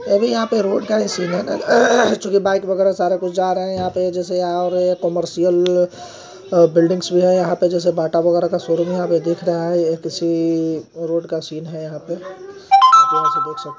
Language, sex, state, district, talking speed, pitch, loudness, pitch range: Hindi, male, Jharkhand, Sahebganj, 220 wpm, 180 Hz, -17 LUFS, 170-190 Hz